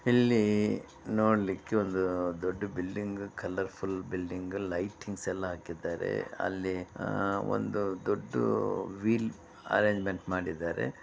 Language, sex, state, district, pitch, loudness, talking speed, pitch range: Kannada, male, Karnataka, Bellary, 95 Hz, -32 LUFS, 100 wpm, 90-105 Hz